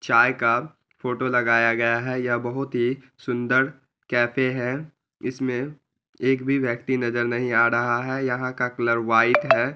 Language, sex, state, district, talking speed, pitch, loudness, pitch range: Hindi, male, Bihar, Araria, 160 wpm, 125 Hz, -23 LUFS, 120-130 Hz